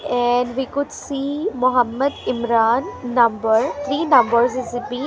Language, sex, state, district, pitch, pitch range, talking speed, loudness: English, female, Haryana, Rohtak, 250 Hz, 235-275 Hz, 130 wpm, -19 LUFS